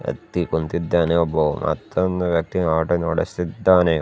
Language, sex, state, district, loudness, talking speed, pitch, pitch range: Kannada, male, Karnataka, Bidar, -21 LUFS, 90 wpm, 85 Hz, 80-90 Hz